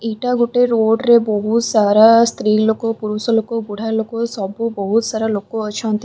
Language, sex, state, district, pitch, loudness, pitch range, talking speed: Odia, female, Odisha, Khordha, 225 Hz, -16 LUFS, 215-230 Hz, 130 wpm